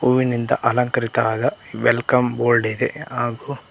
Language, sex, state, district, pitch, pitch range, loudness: Kannada, male, Karnataka, Koppal, 120 Hz, 115-125 Hz, -20 LUFS